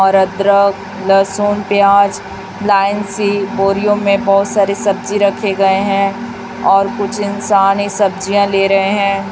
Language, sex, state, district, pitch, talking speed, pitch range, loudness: Hindi, female, Chhattisgarh, Raipur, 200 Hz, 140 wpm, 195-205 Hz, -13 LUFS